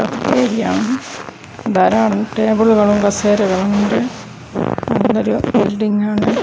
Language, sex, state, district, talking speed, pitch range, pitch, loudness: Malayalam, female, Kerala, Kozhikode, 65 wpm, 205-220 Hz, 210 Hz, -15 LUFS